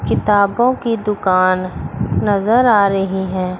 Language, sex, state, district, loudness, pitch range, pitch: Hindi, female, Chandigarh, Chandigarh, -16 LUFS, 185-215 Hz, 200 Hz